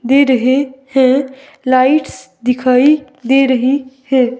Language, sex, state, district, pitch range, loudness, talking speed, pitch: Hindi, female, Himachal Pradesh, Shimla, 255-270 Hz, -13 LUFS, 110 wpm, 260 Hz